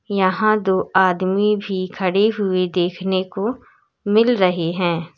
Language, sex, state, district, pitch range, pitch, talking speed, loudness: Hindi, female, Uttar Pradesh, Lalitpur, 185-205 Hz, 190 Hz, 125 wpm, -19 LUFS